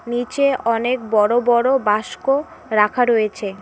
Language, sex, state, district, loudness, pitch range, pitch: Bengali, female, West Bengal, Cooch Behar, -18 LUFS, 210-255 Hz, 235 Hz